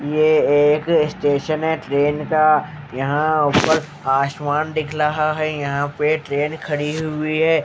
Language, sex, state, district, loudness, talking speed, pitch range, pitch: Hindi, male, Haryana, Jhajjar, -19 LUFS, 140 wpm, 145-155 Hz, 150 Hz